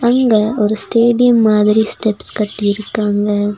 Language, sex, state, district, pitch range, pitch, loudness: Tamil, female, Tamil Nadu, Nilgiris, 210-230 Hz, 215 Hz, -14 LUFS